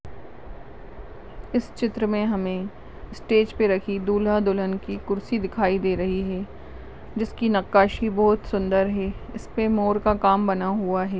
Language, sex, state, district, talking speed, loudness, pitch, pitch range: Hindi, male, Maharashtra, Sindhudurg, 150 wpm, -23 LUFS, 200 Hz, 195-215 Hz